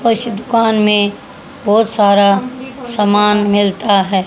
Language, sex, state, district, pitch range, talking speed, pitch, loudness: Hindi, female, Haryana, Jhajjar, 205-230 Hz, 110 wpm, 210 Hz, -13 LUFS